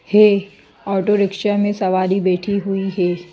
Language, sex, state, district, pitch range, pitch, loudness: Hindi, female, Madhya Pradesh, Bhopal, 185-205 Hz, 195 Hz, -17 LUFS